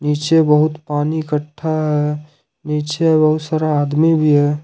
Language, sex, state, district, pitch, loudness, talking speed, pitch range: Hindi, male, Jharkhand, Ranchi, 150 Hz, -16 LUFS, 140 wpm, 150-155 Hz